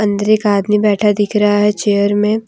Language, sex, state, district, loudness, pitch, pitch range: Hindi, female, Jharkhand, Deoghar, -13 LUFS, 210 Hz, 205-210 Hz